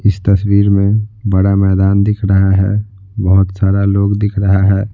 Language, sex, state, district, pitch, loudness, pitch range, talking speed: Hindi, male, Bihar, Patna, 100 Hz, -13 LUFS, 95-100 Hz, 170 wpm